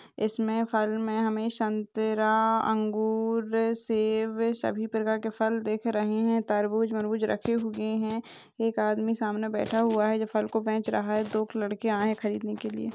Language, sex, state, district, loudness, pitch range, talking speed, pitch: Hindi, female, Maharashtra, Aurangabad, -28 LUFS, 215-225 Hz, 185 wpm, 220 Hz